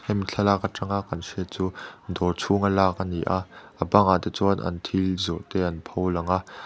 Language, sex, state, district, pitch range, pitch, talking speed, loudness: Mizo, male, Mizoram, Aizawl, 90-100 Hz, 95 Hz, 225 wpm, -25 LUFS